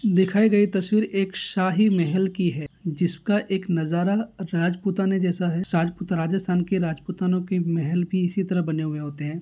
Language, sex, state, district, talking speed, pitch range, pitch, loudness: Hindi, male, Rajasthan, Nagaur, 180 wpm, 170-195 Hz, 185 Hz, -24 LUFS